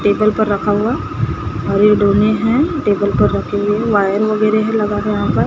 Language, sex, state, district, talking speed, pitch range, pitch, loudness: Hindi, male, Maharashtra, Gondia, 195 wpm, 205-215 Hz, 210 Hz, -15 LUFS